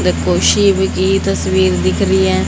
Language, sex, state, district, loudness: Hindi, female, Haryana, Jhajjar, -13 LUFS